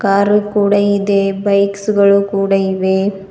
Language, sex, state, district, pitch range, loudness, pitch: Kannada, female, Karnataka, Bidar, 195-205 Hz, -14 LUFS, 200 Hz